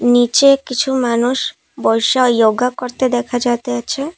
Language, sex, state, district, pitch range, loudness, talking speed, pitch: Bengali, female, Assam, Kamrup Metropolitan, 240-260 Hz, -15 LUFS, 115 wpm, 245 Hz